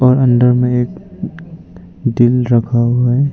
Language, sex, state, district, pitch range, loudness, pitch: Hindi, male, Arunachal Pradesh, Lower Dibang Valley, 120-125 Hz, -13 LUFS, 125 Hz